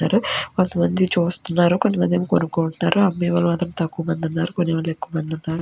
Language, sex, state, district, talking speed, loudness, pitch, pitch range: Telugu, female, Andhra Pradesh, Chittoor, 160 wpm, -20 LUFS, 175 Hz, 165-175 Hz